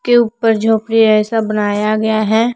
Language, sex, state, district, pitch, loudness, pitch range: Hindi, female, Jharkhand, Palamu, 220 Hz, -14 LUFS, 215-225 Hz